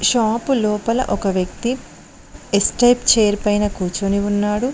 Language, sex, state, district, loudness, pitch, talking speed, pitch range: Telugu, female, Telangana, Mahabubabad, -18 LUFS, 210 Hz, 125 wpm, 200-240 Hz